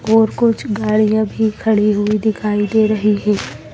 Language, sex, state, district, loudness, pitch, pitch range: Hindi, female, Madhya Pradesh, Bhopal, -16 LUFS, 215 Hz, 210-220 Hz